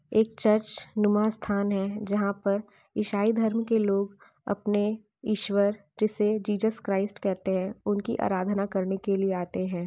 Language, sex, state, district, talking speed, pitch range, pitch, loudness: Hindi, female, Uttar Pradesh, Varanasi, 150 wpm, 200-215 Hz, 205 Hz, -28 LUFS